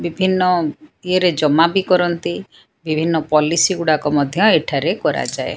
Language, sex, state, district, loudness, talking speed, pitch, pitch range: Odia, female, Odisha, Sambalpur, -17 LUFS, 110 wpm, 170 Hz, 155-185 Hz